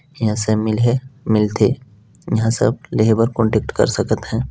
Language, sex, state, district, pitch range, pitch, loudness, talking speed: Hindi, male, Chhattisgarh, Balrampur, 110-125 Hz, 110 Hz, -18 LUFS, 185 wpm